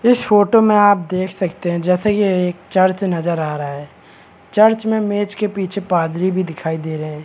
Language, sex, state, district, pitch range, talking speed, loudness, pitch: Hindi, male, Bihar, Madhepura, 170-205 Hz, 225 wpm, -17 LUFS, 185 Hz